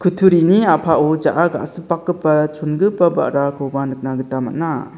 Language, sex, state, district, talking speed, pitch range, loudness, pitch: Garo, male, Meghalaya, South Garo Hills, 110 wpm, 140-170 Hz, -17 LUFS, 155 Hz